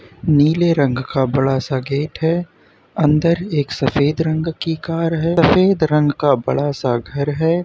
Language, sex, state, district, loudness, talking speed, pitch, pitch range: Hindi, male, Uttar Pradesh, Gorakhpur, -17 LUFS, 165 wpm, 150 Hz, 140-165 Hz